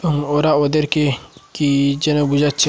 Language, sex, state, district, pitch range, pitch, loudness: Bengali, male, Assam, Hailakandi, 145-150 Hz, 145 Hz, -17 LUFS